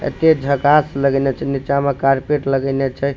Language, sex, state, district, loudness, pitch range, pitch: Maithili, male, Bihar, Supaul, -17 LUFS, 135-145 Hz, 140 Hz